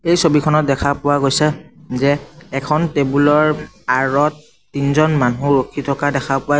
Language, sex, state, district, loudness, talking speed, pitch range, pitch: Assamese, male, Assam, Sonitpur, -17 LUFS, 145 wpm, 140-150 Hz, 145 Hz